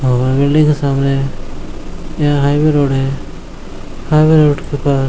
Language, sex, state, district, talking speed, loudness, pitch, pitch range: Hindi, male, Bihar, Lakhisarai, 155 wpm, -13 LUFS, 140 Hz, 135-150 Hz